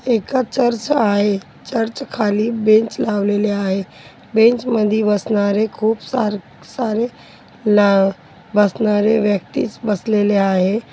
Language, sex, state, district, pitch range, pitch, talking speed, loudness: Marathi, female, Maharashtra, Chandrapur, 205-225 Hz, 215 Hz, 105 wpm, -17 LUFS